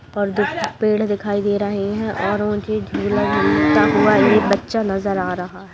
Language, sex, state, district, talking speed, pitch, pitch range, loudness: Hindi, female, Bihar, Saharsa, 190 wpm, 205 Hz, 185-210 Hz, -18 LUFS